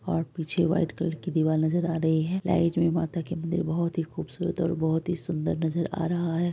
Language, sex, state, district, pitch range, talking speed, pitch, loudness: Hindi, female, Bihar, Araria, 160-170 Hz, 230 wpm, 170 Hz, -27 LUFS